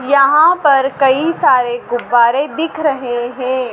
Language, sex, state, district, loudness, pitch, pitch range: Hindi, female, Madhya Pradesh, Dhar, -13 LUFS, 270 Hz, 245-295 Hz